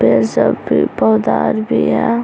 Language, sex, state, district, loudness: Hindi, female, Bihar, Samastipur, -14 LUFS